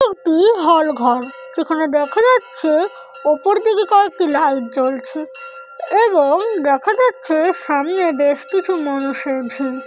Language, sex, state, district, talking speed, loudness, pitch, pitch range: Bengali, female, West Bengal, Kolkata, 115 wpm, -16 LUFS, 310 Hz, 275-390 Hz